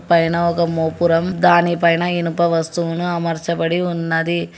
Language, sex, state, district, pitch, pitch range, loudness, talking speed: Telugu, male, Telangana, Hyderabad, 170 Hz, 165-170 Hz, -17 LUFS, 105 wpm